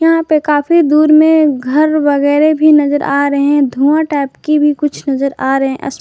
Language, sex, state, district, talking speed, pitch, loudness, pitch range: Hindi, female, Jharkhand, Garhwa, 210 wpm, 295 Hz, -11 LUFS, 280-305 Hz